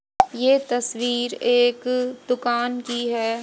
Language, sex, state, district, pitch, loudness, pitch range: Hindi, female, Haryana, Jhajjar, 245 Hz, -22 LUFS, 240-250 Hz